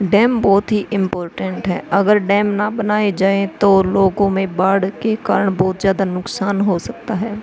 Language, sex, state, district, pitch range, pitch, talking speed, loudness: Hindi, female, Uttar Pradesh, Hamirpur, 190-210 Hz, 195 Hz, 180 wpm, -17 LUFS